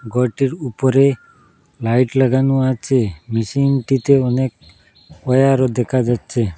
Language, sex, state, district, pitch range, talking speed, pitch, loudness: Bengali, male, Assam, Hailakandi, 120-135 Hz, 90 wpm, 130 Hz, -17 LUFS